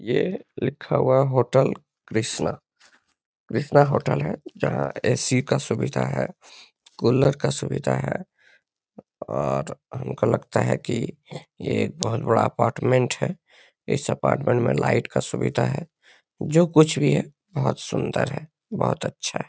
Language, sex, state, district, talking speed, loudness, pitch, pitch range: Hindi, male, Bihar, Lakhisarai, 140 wpm, -23 LUFS, 125 Hz, 110-140 Hz